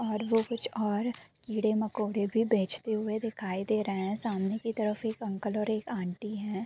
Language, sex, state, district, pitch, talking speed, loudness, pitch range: Hindi, female, Chhattisgarh, Bilaspur, 215 Hz, 190 wpm, -32 LUFS, 210-220 Hz